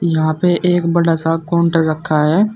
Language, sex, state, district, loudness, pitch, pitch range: Hindi, male, Uttar Pradesh, Saharanpur, -15 LUFS, 165 Hz, 160-175 Hz